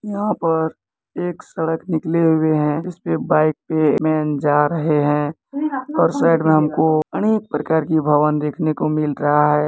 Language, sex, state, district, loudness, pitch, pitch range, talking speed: Maithili, male, Bihar, Kishanganj, -18 LUFS, 155 Hz, 150-165 Hz, 175 wpm